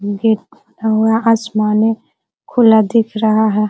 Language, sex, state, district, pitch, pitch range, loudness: Hindi, female, Bihar, Araria, 220 Hz, 215-225 Hz, -14 LUFS